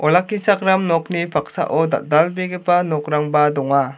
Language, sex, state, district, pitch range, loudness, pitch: Garo, male, Meghalaya, South Garo Hills, 150-180 Hz, -18 LUFS, 165 Hz